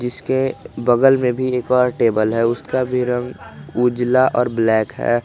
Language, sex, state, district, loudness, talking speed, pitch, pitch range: Hindi, male, Jharkhand, Garhwa, -18 LUFS, 170 wpm, 125 Hz, 120-130 Hz